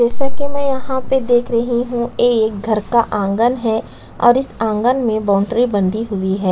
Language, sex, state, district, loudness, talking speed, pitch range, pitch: Hindi, female, Chhattisgarh, Sukma, -17 LUFS, 185 wpm, 215-250 Hz, 235 Hz